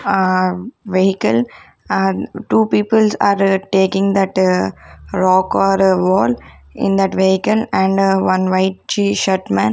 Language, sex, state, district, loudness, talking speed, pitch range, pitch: English, female, Punjab, Kapurthala, -15 LUFS, 130 wpm, 120-195 Hz, 190 Hz